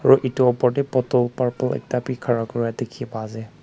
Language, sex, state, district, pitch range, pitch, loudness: Nagamese, male, Nagaland, Kohima, 115-130 Hz, 125 Hz, -22 LUFS